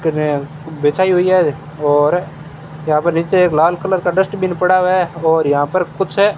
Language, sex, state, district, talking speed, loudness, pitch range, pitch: Hindi, male, Rajasthan, Bikaner, 180 wpm, -15 LUFS, 150-185 Hz, 165 Hz